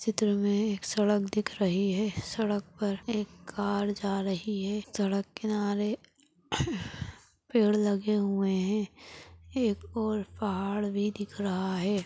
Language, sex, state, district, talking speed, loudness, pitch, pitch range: Hindi, female, Maharashtra, Dhule, 135 wpm, -30 LUFS, 205 Hz, 195-210 Hz